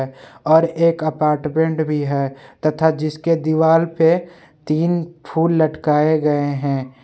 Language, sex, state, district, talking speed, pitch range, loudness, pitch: Hindi, male, Jharkhand, Palamu, 120 wpm, 150-165 Hz, -18 LUFS, 155 Hz